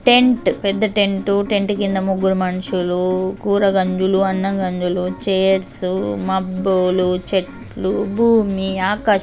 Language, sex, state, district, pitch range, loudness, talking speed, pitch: Telugu, female, Andhra Pradesh, Chittoor, 185-200 Hz, -18 LUFS, 115 wpm, 190 Hz